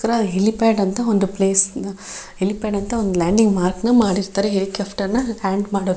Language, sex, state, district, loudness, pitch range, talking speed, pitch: Kannada, female, Karnataka, Shimoga, -19 LUFS, 195-220 Hz, 150 wpm, 200 Hz